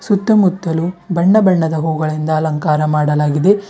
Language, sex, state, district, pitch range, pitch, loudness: Kannada, female, Karnataka, Bidar, 155-190 Hz, 165 Hz, -15 LUFS